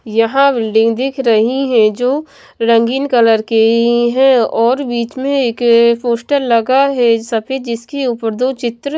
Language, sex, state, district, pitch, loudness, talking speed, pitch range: Hindi, female, Himachal Pradesh, Shimla, 240 Hz, -13 LUFS, 140 wpm, 230-265 Hz